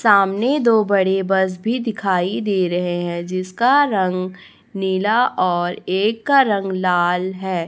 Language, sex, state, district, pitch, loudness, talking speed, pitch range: Hindi, female, Chhattisgarh, Raipur, 190 Hz, -18 LUFS, 140 wpm, 185-220 Hz